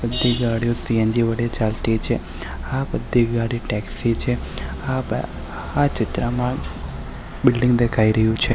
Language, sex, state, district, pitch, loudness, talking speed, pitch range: Gujarati, male, Gujarat, Valsad, 115 Hz, -21 LUFS, 135 wpm, 105-120 Hz